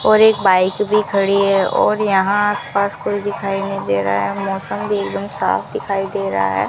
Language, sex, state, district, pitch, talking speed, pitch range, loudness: Hindi, female, Rajasthan, Bikaner, 195 Hz, 225 wpm, 190-205 Hz, -17 LUFS